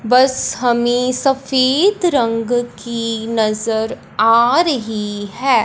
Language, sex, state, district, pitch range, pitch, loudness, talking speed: Hindi, male, Punjab, Fazilka, 225-260 Hz, 240 Hz, -16 LUFS, 95 wpm